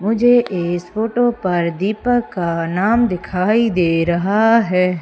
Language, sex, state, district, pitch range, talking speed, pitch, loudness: Hindi, female, Madhya Pradesh, Umaria, 175-230 Hz, 130 wpm, 190 Hz, -17 LUFS